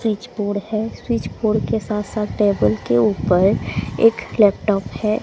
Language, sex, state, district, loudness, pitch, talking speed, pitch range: Hindi, female, Odisha, Sambalpur, -19 LUFS, 210 Hz, 160 wpm, 200-220 Hz